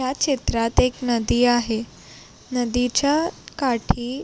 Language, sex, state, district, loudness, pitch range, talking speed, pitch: Marathi, female, Maharashtra, Sindhudurg, -22 LUFS, 235-265 Hz, 100 wpm, 245 Hz